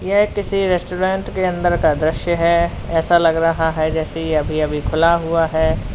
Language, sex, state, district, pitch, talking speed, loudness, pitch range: Hindi, male, Uttar Pradesh, Lalitpur, 165 Hz, 190 wpm, -17 LUFS, 160-180 Hz